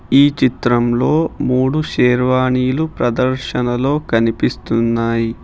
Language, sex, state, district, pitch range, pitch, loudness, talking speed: Telugu, male, Telangana, Hyderabad, 120-135 Hz, 125 Hz, -16 LUFS, 65 wpm